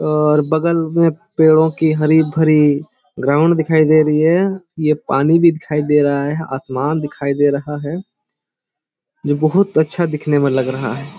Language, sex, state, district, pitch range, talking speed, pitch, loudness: Hindi, male, Jharkhand, Jamtara, 145-160 Hz, 165 wpm, 155 Hz, -15 LUFS